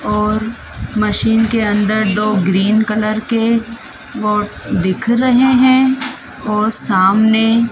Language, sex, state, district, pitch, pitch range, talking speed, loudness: Hindi, female, Madhya Pradesh, Dhar, 220 Hz, 210-230 Hz, 110 wpm, -14 LUFS